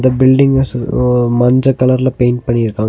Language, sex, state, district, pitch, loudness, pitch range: Tamil, male, Tamil Nadu, Nilgiris, 125 Hz, -12 LUFS, 120-130 Hz